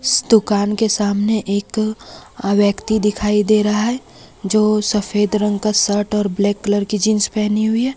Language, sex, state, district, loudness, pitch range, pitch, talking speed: Hindi, female, Jharkhand, Deoghar, -17 LUFS, 205-215 Hz, 210 Hz, 175 wpm